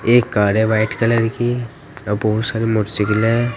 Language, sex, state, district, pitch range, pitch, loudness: Hindi, male, Uttar Pradesh, Saharanpur, 110-120 Hz, 115 Hz, -17 LUFS